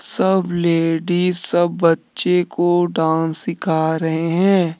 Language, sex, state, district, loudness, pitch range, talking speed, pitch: Hindi, male, Jharkhand, Deoghar, -18 LUFS, 165-180 Hz, 115 wpm, 175 Hz